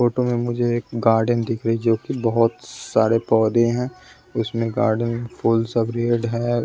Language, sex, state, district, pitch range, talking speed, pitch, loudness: Hindi, male, Bihar, West Champaran, 115-120 Hz, 170 wpm, 115 Hz, -21 LUFS